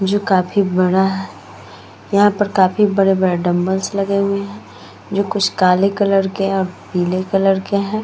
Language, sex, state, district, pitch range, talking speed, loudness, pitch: Hindi, female, Uttar Pradesh, Muzaffarnagar, 180-200 Hz, 170 wpm, -16 LUFS, 190 Hz